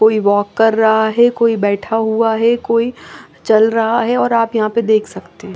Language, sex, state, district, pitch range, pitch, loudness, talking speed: Hindi, female, Chandigarh, Chandigarh, 220-230 Hz, 225 Hz, -14 LUFS, 215 wpm